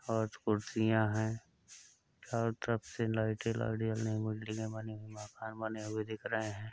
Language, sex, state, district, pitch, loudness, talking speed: Hindi, male, Uttar Pradesh, Hamirpur, 110 Hz, -37 LUFS, 185 wpm